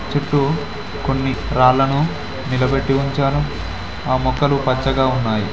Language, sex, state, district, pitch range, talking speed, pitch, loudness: Telugu, male, Telangana, Mahabubabad, 130-140 Hz, 100 wpm, 135 Hz, -19 LUFS